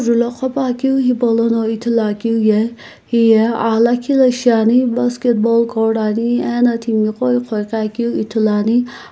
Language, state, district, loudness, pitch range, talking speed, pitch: Sumi, Nagaland, Kohima, -15 LUFS, 225-245 Hz, 150 wpm, 235 Hz